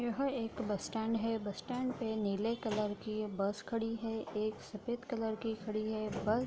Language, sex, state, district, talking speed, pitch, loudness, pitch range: Hindi, female, Bihar, Darbhanga, 205 wpm, 220 Hz, -37 LUFS, 215-230 Hz